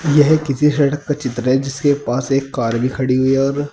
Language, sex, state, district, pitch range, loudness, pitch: Hindi, male, Uttar Pradesh, Saharanpur, 130-145 Hz, -17 LUFS, 135 Hz